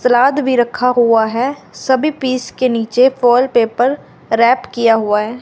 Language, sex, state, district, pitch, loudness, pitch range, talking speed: Hindi, female, Haryana, Rohtak, 245 Hz, -14 LUFS, 230-260 Hz, 165 wpm